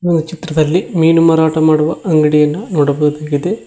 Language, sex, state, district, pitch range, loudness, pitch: Kannada, male, Karnataka, Koppal, 150-165 Hz, -13 LUFS, 160 Hz